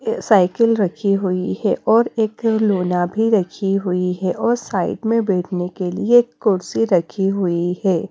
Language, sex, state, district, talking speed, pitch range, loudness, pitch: Hindi, female, Punjab, Kapurthala, 165 wpm, 180-220 Hz, -18 LUFS, 195 Hz